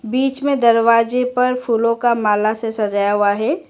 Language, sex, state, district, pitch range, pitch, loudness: Hindi, female, Arunachal Pradesh, Lower Dibang Valley, 215-250 Hz, 230 Hz, -16 LUFS